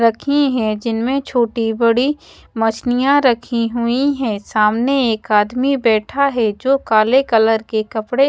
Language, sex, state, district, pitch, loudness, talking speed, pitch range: Hindi, female, Haryana, Charkhi Dadri, 235 Hz, -16 LUFS, 140 wpm, 225-270 Hz